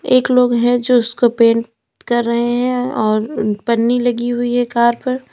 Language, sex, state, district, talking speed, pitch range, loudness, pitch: Hindi, female, Uttar Pradesh, Lalitpur, 180 wpm, 235-245 Hz, -15 LUFS, 240 Hz